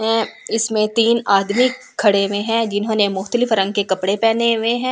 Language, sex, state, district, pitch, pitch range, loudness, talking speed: Hindi, female, Delhi, New Delhi, 220 Hz, 205-230 Hz, -17 LUFS, 185 wpm